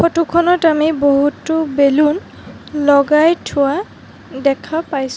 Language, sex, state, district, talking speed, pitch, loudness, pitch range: Assamese, female, Assam, Sonitpur, 105 wpm, 300 Hz, -15 LUFS, 280-320 Hz